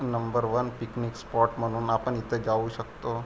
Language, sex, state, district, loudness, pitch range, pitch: Marathi, male, Maharashtra, Pune, -29 LUFS, 115-120 Hz, 115 Hz